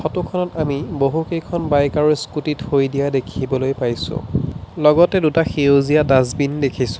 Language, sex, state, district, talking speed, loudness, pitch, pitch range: Assamese, male, Assam, Sonitpur, 130 wpm, -18 LUFS, 145 Hz, 135-155 Hz